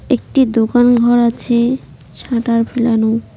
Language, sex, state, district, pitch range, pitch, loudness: Bengali, female, West Bengal, Cooch Behar, 230-245 Hz, 235 Hz, -14 LUFS